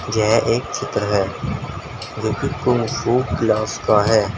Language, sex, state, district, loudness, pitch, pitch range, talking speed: Hindi, male, Uttar Pradesh, Saharanpur, -19 LUFS, 110 Hz, 105-115 Hz, 150 wpm